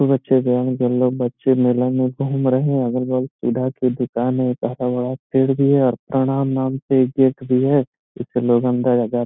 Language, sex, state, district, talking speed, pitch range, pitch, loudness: Hindi, male, Bihar, Gopalganj, 190 wpm, 125-135 Hz, 130 Hz, -19 LUFS